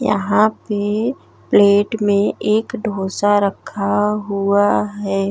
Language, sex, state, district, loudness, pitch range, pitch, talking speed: Bhojpuri, female, Uttar Pradesh, Gorakhpur, -17 LUFS, 200-215 Hz, 205 Hz, 100 wpm